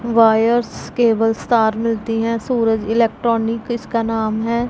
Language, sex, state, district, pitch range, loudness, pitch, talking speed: Hindi, female, Punjab, Pathankot, 225-235 Hz, -18 LUFS, 230 Hz, 125 wpm